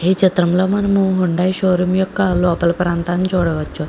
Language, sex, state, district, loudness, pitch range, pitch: Telugu, female, Andhra Pradesh, Krishna, -16 LUFS, 175-190 Hz, 180 Hz